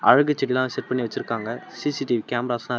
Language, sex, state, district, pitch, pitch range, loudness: Tamil, male, Tamil Nadu, Namakkal, 125 Hz, 120-135 Hz, -24 LUFS